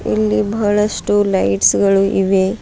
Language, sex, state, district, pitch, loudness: Kannada, female, Karnataka, Bidar, 195 Hz, -15 LUFS